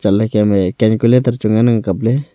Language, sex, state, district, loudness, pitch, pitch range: Wancho, male, Arunachal Pradesh, Longding, -14 LUFS, 110 Hz, 105-120 Hz